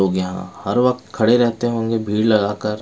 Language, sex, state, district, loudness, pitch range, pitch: Hindi, male, Bihar, West Champaran, -19 LUFS, 105-120 Hz, 110 Hz